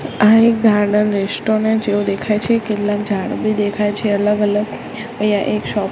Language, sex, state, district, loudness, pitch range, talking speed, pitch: Gujarati, female, Gujarat, Gandhinagar, -16 LUFS, 205-220 Hz, 180 wpm, 210 Hz